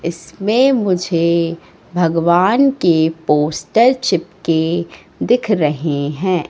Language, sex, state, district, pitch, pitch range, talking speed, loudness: Hindi, female, Madhya Pradesh, Katni, 170 Hz, 165-205 Hz, 85 wpm, -16 LUFS